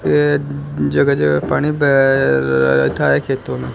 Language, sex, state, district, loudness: Hindi, male, Rajasthan, Jaipur, -15 LUFS